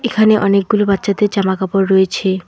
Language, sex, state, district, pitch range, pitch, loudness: Bengali, female, West Bengal, Alipurduar, 190-210 Hz, 200 Hz, -14 LUFS